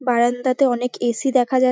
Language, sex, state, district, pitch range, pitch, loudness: Bengali, female, West Bengal, Paschim Medinipur, 240-255 Hz, 250 Hz, -19 LUFS